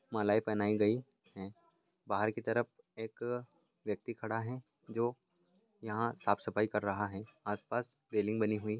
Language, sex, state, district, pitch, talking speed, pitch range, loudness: Hindi, male, Bihar, Lakhisarai, 110 Hz, 165 wpm, 105-120 Hz, -36 LUFS